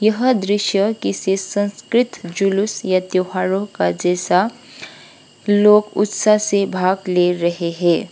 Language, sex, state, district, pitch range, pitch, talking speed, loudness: Hindi, female, Sikkim, Gangtok, 185-210 Hz, 195 Hz, 120 wpm, -18 LUFS